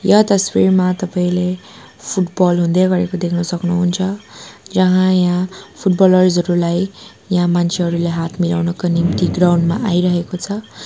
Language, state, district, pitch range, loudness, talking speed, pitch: Nepali, West Bengal, Darjeeling, 175-185 Hz, -16 LUFS, 115 wpm, 180 Hz